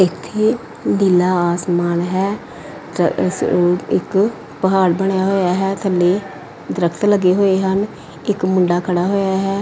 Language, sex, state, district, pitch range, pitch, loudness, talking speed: Punjabi, female, Punjab, Pathankot, 180-195 Hz, 190 Hz, -17 LUFS, 130 wpm